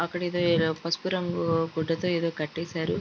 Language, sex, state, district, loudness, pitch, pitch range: Telugu, female, Andhra Pradesh, Guntur, -27 LUFS, 170 Hz, 165-175 Hz